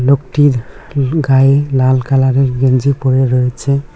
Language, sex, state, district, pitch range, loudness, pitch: Bengali, male, West Bengal, Cooch Behar, 130-140 Hz, -13 LUFS, 135 Hz